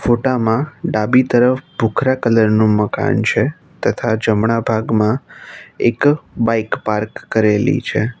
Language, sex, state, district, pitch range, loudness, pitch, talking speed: Gujarati, male, Gujarat, Navsari, 110-130 Hz, -16 LUFS, 115 Hz, 115 wpm